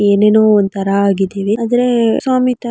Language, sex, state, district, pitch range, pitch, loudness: Kannada, male, Karnataka, Mysore, 200-240 Hz, 210 Hz, -13 LUFS